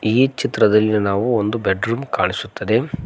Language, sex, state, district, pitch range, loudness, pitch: Kannada, male, Karnataka, Koppal, 105-130 Hz, -18 LUFS, 115 Hz